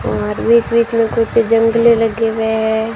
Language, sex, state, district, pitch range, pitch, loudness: Hindi, female, Rajasthan, Bikaner, 220-230 Hz, 225 Hz, -14 LUFS